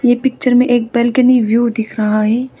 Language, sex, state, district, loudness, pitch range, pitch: Hindi, female, Arunachal Pradesh, Papum Pare, -13 LUFS, 225-250 Hz, 240 Hz